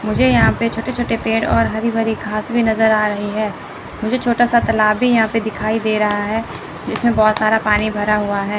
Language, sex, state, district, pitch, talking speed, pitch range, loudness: Hindi, female, Chandigarh, Chandigarh, 220 Hz, 225 wpm, 210-225 Hz, -17 LUFS